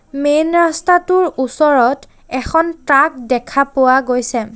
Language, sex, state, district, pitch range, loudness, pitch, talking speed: Assamese, female, Assam, Sonitpur, 255-325 Hz, -14 LUFS, 275 Hz, 105 wpm